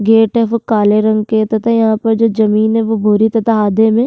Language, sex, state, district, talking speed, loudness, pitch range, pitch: Hindi, female, Uttarakhand, Tehri Garhwal, 265 wpm, -12 LUFS, 215-225 Hz, 220 Hz